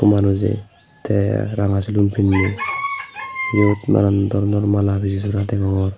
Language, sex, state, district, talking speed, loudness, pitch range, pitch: Chakma, male, Tripura, Unakoti, 120 wpm, -19 LUFS, 100-105 Hz, 100 Hz